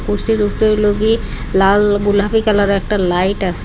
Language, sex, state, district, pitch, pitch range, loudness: Bengali, female, Assam, Hailakandi, 205 Hz, 195-215 Hz, -15 LUFS